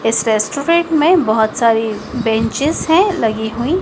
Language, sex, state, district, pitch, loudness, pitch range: Hindi, female, Madhya Pradesh, Dhar, 235 Hz, -15 LUFS, 220-320 Hz